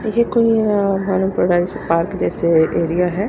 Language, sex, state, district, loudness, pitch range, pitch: Hindi, female, Haryana, Rohtak, -17 LUFS, 170-210 Hz, 190 Hz